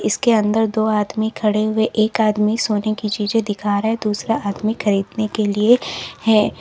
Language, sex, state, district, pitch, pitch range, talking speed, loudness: Hindi, female, Uttar Pradesh, Lalitpur, 215 Hz, 210-220 Hz, 180 wpm, -18 LUFS